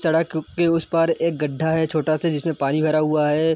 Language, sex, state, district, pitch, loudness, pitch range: Hindi, male, Bihar, Sitamarhi, 160 Hz, -21 LUFS, 155-165 Hz